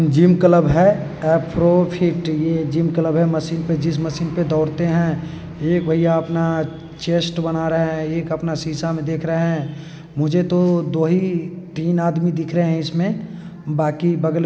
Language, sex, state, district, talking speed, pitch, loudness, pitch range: Hindi, male, Bihar, East Champaran, 190 wpm, 165 Hz, -19 LUFS, 160-170 Hz